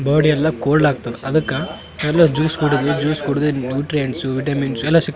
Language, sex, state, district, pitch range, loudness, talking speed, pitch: Kannada, male, Karnataka, Raichur, 135-155 Hz, -18 LUFS, 175 wpm, 150 Hz